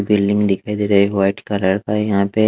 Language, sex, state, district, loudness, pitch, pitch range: Hindi, male, Haryana, Rohtak, -17 LUFS, 100 Hz, 100-105 Hz